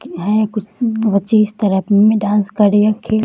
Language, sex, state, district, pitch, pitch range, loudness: Hindi, female, Bihar, Jahanabad, 210 Hz, 205-215 Hz, -15 LUFS